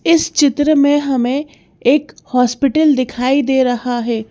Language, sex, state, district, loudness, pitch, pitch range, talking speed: Hindi, female, Madhya Pradesh, Bhopal, -15 LUFS, 265 Hz, 245-290 Hz, 140 wpm